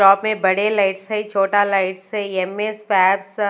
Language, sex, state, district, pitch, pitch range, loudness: Hindi, female, Chhattisgarh, Raipur, 200 Hz, 190-210 Hz, -19 LUFS